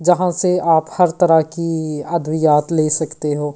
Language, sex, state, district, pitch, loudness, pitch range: Hindi, female, Delhi, New Delhi, 160 Hz, -17 LUFS, 155-175 Hz